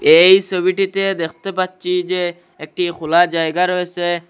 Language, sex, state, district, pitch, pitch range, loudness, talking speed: Bengali, male, Assam, Hailakandi, 180 Hz, 175-185 Hz, -16 LUFS, 125 wpm